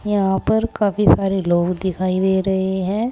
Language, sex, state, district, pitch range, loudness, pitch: Hindi, female, Uttar Pradesh, Saharanpur, 185-205 Hz, -18 LUFS, 190 Hz